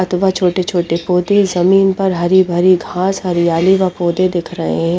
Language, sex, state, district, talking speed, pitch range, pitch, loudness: Hindi, female, Chandigarh, Chandigarh, 170 wpm, 175-190 Hz, 180 Hz, -14 LUFS